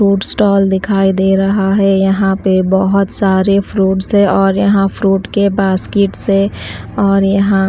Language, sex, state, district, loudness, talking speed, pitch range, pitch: Hindi, female, Delhi, New Delhi, -12 LUFS, 155 wpm, 195-200 Hz, 195 Hz